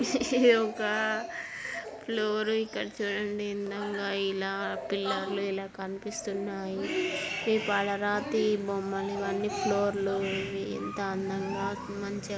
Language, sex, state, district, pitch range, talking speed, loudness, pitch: Telugu, female, Andhra Pradesh, Guntur, 195-215 Hz, 95 wpm, -30 LUFS, 200 Hz